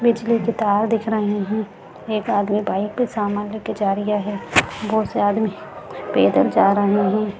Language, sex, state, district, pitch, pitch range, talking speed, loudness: Hindi, female, Bihar, Jamui, 210 Hz, 205-220 Hz, 185 wpm, -20 LUFS